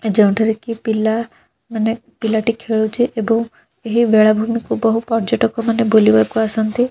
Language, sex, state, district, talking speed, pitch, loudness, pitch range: Odia, female, Odisha, Khordha, 120 wpm, 225 Hz, -16 LUFS, 220-230 Hz